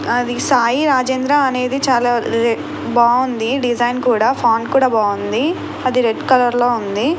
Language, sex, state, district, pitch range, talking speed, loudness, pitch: Telugu, female, Andhra Pradesh, Krishna, 235-260 Hz, 135 wpm, -16 LUFS, 245 Hz